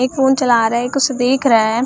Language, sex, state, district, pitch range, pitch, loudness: Hindi, female, Bihar, Samastipur, 235-265 Hz, 250 Hz, -15 LUFS